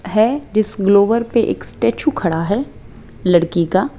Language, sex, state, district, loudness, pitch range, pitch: Hindi, female, Rajasthan, Jaipur, -16 LUFS, 180-230 Hz, 205 Hz